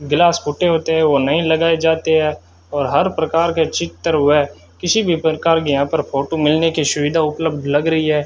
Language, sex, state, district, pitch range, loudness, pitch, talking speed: Hindi, male, Rajasthan, Bikaner, 145-165 Hz, -16 LUFS, 160 Hz, 210 wpm